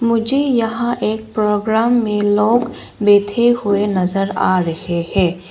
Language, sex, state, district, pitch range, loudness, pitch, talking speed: Hindi, female, Arunachal Pradesh, Longding, 195-235 Hz, -16 LUFS, 210 Hz, 130 wpm